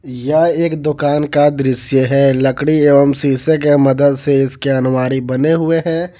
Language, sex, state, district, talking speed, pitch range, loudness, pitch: Hindi, male, Jharkhand, Garhwa, 165 wpm, 135-155 Hz, -13 LUFS, 140 Hz